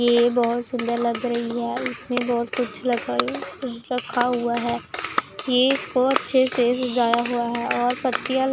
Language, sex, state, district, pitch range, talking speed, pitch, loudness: Hindi, female, Punjab, Pathankot, 235-250 Hz, 175 wpm, 245 Hz, -23 LUFS